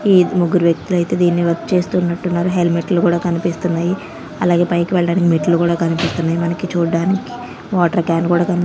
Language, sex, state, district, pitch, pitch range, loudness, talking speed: Telugu, female, Andhra Pradesh, Manyam, 175 Hz, 170-180 Hz, -16 LUFS, 160 wpm